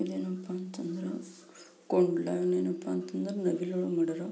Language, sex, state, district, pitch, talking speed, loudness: Kannada, female, Karnataka, Belgaum, 170 Hz, 85 wpm, -32 LUFS